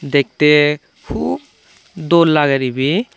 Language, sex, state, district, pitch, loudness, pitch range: Chakma, male, Tripura, Dhalai, 150 Hz, -15 LUFS, 140-165 Hz